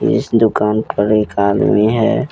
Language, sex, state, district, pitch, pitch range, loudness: Hindi, male, Jharkhand, Deoghar, 110 Hz, 105-115 Hz, -14 LUFS